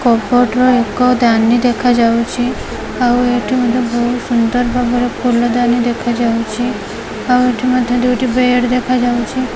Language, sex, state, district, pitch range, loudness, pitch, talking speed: Odia, female, Odisha, Malkangiri, 240-250 Hz, -14 LUFS, 245 Hz, 120 wpm